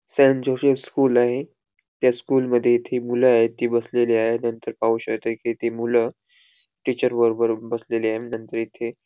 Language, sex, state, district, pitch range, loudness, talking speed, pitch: Marathi, male, Goa, North and South Goa, 115-125 Hz, -22 LUFS, 165 wpm, 120 Hz